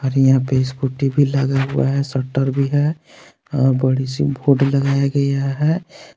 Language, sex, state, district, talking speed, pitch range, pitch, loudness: Hindi, male, Jharkhand, Palamu, 175 wpm, 135-140 Hz, 135 Hz, -18 LUFS